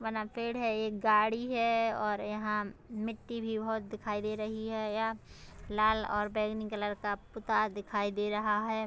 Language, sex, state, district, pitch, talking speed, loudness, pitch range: Hindi, female, Chhattisgarh, Kabirdham, 215 Hz, 185 wpm, -33 LUFS, 210-220 Hz